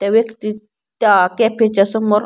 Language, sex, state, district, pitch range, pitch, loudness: Marathi, female, Maharashtra, Pune, 210-225 Hz, 215 Hz, -15 LUFS